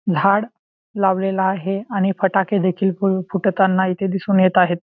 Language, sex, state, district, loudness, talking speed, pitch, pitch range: Marathi, male, Maharashtra, Chandrapur, -18 LUFS, 135 wpm, 195 Hz, 190-195 Hz